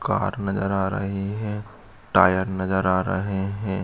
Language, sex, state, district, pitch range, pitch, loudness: Hindi, male, Chhattisgarh, Bilaspur, 95-100 Hz, 95 Hz, -24 LUFS